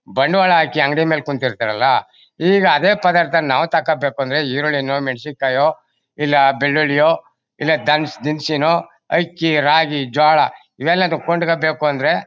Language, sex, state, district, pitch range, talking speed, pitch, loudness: Kannada, male, Karnataka, Mysore, 140-165 Hz, 110 wpm, 155 Hz, -16 LUFS